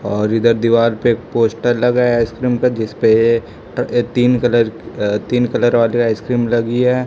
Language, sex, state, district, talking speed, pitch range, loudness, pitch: Hindi, male, Chhattisgarh, Raipur, 185 wpm, 115-120 Hz, -15 LUFS, 115 Hz